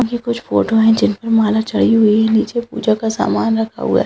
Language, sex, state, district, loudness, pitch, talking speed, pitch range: Hindi, female, Bihar, Jahanabad, -15 LUFS, 225 Hz, 250 wpm, 220-235 Hz